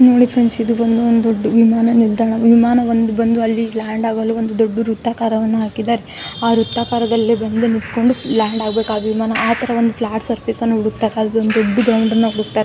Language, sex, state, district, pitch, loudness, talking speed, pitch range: Kannada, female, Karnataka, Gulbarga, 225 Hz, -16 LUFS, 155 wpm, 220-230 Hz